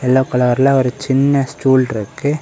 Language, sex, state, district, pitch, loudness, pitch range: Tamil, male, Tamil Nadu, Kanyakumari, 130 Hz, -15 LUFS, 125-140 Hz